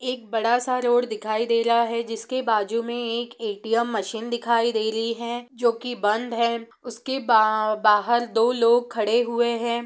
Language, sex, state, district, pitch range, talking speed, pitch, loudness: Hindi, female, Bihar, East Champaran, 225-240 Hz, 175 wpm, 235 Hz, -23 LUFS